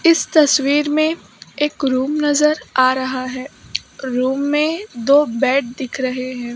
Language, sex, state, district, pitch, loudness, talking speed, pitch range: Hindi, male, Maharashtra, Mumbai Suburban, 275 Hz, -18 LUFS, 145 wpm, 255-300 Hz